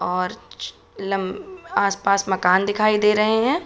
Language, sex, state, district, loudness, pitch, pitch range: Hindi, female, Uttar Pradesh, Budaun, -20 LUFS, 200 Hz, 190-215 Hz